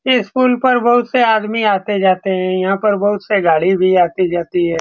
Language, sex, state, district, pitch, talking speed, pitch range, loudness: Hindi, male, Bihar, Saran, 200 Hz, 200 wpm, 185-230 Hz, -14 LUFS